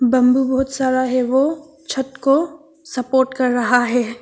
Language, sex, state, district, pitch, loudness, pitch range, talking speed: Hindi, female, Arunachal Pradesh, Papum Pare, 260 Hz, -18 LUFS, 250-275 Hz, 155 wpm